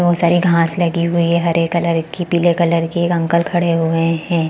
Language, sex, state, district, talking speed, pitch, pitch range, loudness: Hindi, female, Chhattisgarh, Balrampur, 225 wpm, 170 Hz, 165-175 Hz, -16 LUFS